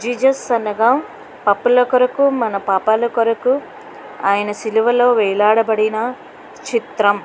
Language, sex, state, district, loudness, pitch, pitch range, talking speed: Telugu, female, Andhra Pradesh, Krishna, -16 LUFS, 235 Hz, 215-255 Hz, 85 wpm